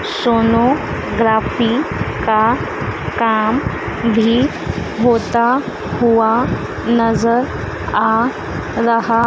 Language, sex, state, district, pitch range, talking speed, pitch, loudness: Hindi, female, Madhya Pradesh, Dhar, 225-235 Hz, 60 wpm, 230 Hz, -16 LUFS